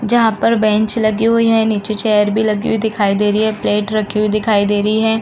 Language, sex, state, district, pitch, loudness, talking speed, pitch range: Hindi, female, Uttar Pradesh, Varanasi, 215 Hz, -14 LUFS, 255 wpm, 210-225 Hz